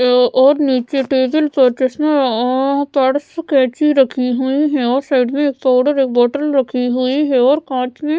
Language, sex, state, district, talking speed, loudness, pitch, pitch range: Hindi, female, Odisha, Sambalpur, 200 wpm, -15 LUFS, 265 Hz, 255-290 Hz